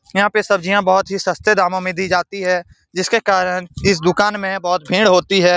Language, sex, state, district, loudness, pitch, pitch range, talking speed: Hindi, male, Bihar, Saran, -16 LUFS, 190 Hz, 180-200 Hz, 215 wpm